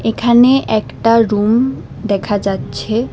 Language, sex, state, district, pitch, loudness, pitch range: Bengali, female, Assam, Hailakandi, 225 Hz, -14 LUFS, 210-235 Hz